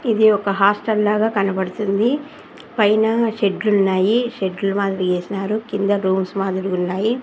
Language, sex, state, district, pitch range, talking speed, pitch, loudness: Telugu, female, Andhra Pradesh, Sri Satya Sai, 195-220 Hz, 115 wpm, 200 Hz, -19 LUFS